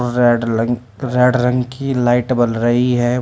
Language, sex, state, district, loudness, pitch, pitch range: Hindi, male, Uttar Pradesh, Shamli, -16 LUFS, 125 Hz, 120-125 Hz